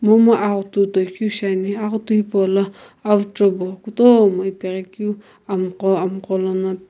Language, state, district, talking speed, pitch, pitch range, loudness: Sumi, Nagaland, Kohima, 120 wpm, 195 Hz, 190-210 Hz, -18 LUFS